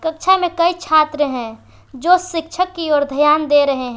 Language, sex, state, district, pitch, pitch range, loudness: Hindi, female, Jharkhand, Palamu, 310 Hz, 290-345 Hz, -16 LUFS